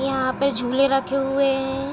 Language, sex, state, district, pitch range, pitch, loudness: Hindi, female, Uttar Pradesh, Ghazipur, 265-275 Hz, 270 Hz, -21 LUFS